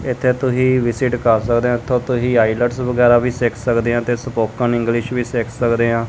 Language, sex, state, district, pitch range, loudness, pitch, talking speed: Punjabi, male, Punjab, Kapurthala, 115-125 Hz, -17 LUFS, 120 Hz, 195 wpm